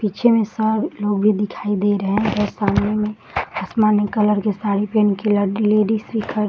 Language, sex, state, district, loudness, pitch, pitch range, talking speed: Hindi, female, Bihar, Saharsa, -19 LUFS, 210 Hz, 205-215 Hz, 215 wpm